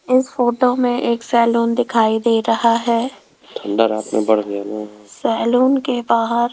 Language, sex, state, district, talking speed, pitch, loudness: Hindi, female, Rajasthan, Jaipur, 120 wpm, 235 Hz, -17 LUFS